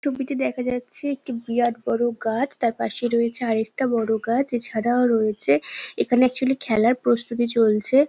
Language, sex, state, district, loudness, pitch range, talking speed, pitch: Bengali, female, West Bengal, Jhargram, -22 LUFS, 230-255 Hz, 155 wpm, 240 Hz